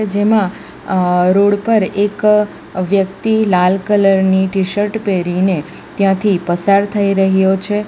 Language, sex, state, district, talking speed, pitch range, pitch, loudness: Gujarati, female, Gujarat, Valsad, 115 wpm, 190-205 Hz, 195 Hz, -14 LUFS